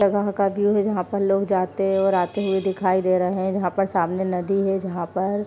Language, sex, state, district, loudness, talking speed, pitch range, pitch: Hindi, female, Uttar Pradesh, Varanasi, -22 LUFS, 250 wpm, 185-200 Hz, 195 Hz